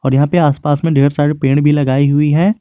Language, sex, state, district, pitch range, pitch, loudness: Hindi, male, Jharkhand, Garhwa, 140-150 Hz, 145 Hz, -13 LUFS